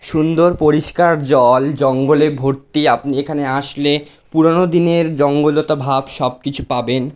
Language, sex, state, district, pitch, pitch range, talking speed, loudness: Bengali, male, West Bengal, North 24 Parganas, 145 Hz, 135-155 Hz, 115 wpm, -15 LUFS